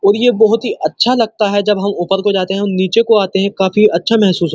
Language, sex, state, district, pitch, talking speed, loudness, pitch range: Hindi, male, Uttar Pradesh, Muzaffarnagar, 200 Hz, 300 wpm, -13 LUFS, 190-220 Hz